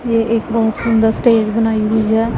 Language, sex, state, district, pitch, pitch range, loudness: Hindi, female, Punjab, Pathankot, 225 Hz, 220-230 Hz, -15 LUFS